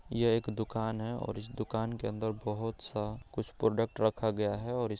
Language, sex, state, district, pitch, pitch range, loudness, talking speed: Hindi, male, Bihar, Araria, 110 Hz, 105-115 Hz, -34 LUFS, 230 wpm